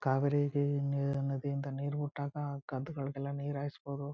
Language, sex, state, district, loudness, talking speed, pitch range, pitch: Kannada, male, Karnataka, Chamarajanagar, -36 LUFS, 145 wpm, 140-145 Hz, 140 Hz